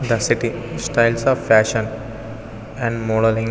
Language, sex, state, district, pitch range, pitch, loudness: Telugu, male, Telangana, Nalgonda, 110-115 Hz, 115 Hz, -19 LUFS